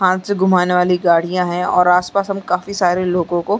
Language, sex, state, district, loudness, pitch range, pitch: Hindi, female, Chhattisgarh, Sarguja, -16 LUFS, 180-190 Hz, 180 Hz